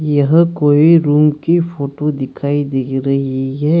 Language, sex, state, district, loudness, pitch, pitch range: Hindi, male, Jharkhand, Deoghar, -14 LUFS, 145 Hz, 135-155 Hz